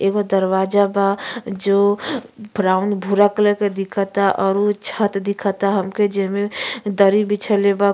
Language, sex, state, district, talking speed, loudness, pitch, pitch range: Bhojpuri, female, Uttar Pradesh, Gorakhpur, 135 wpm, -18 LUFS, 200 Hz, 195-205 Hz